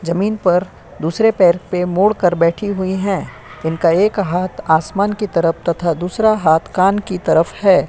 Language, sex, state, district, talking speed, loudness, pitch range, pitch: Hindi, female, Uttar Pradesh, Jyotiba Phule Nagar, 165 wpm, -16 LUFS, 170-200 Hz, 180 Hz